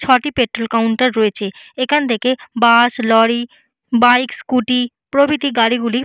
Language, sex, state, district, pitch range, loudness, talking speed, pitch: Bengali, female, West Bengal, Purulia, 230-255 Hz, -15 LUFS, 130 wpm, 245 Hz